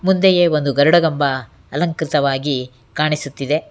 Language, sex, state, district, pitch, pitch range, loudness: Kannada, female, Karnataka, Bangalore, 150 Hz, 135-160 Hz, -17 LUFS